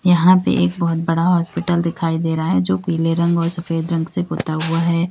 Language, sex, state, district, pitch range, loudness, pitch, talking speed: Hindi, female, Uttar Pradesh, Lalitpur, 165-170 Hz, -18 LUFS, 165 Hz, 235 wpm